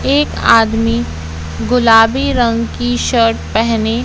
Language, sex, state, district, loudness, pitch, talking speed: Hindi, female, Madhya Pradesh, Katni, -13 LUFS, 225 Hz, 105 wpm